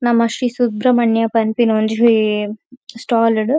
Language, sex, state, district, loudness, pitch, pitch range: Tulu, female, Karnataka, Dakshina Kannada, -16 LUFS, 230 Hz, 220-245 Hz